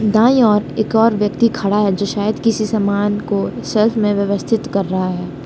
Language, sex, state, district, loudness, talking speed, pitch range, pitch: Hindi, female, Jharkhand, Palamu, -16 LUFS, 200 wpm, 200-220 Hz, 210 Hz